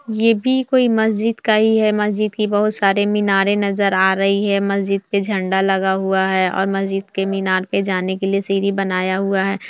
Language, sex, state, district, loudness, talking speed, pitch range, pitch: Hindi, female, Bihar, Jamui, -17 LUFS, 210 wpm, 190-210 Hz, 195 Hz